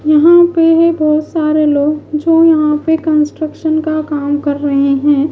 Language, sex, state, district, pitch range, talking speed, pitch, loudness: Hindi, female, Bihar, Kaimur, 295-320 Hz, 170 wpm, 305 Hz, -12 LUFS